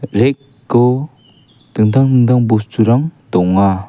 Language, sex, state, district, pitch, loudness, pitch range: Garo, male, Meghalaya, West Garo Hills, 120 Hz, -13 LUFS, 105-135 Hz